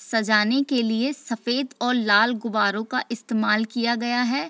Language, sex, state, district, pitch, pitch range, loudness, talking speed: Hindi, female, Bihar, Sitamarhi, 235 Hz, 220-250 Hz, -22 LUFS, 160 wpm